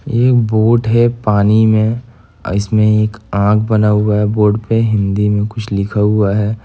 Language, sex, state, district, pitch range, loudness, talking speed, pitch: Hindi, male, Bihar, Gopalganj, 105-110 Hz, -13 LUFS, 180 wpm, 110 Hz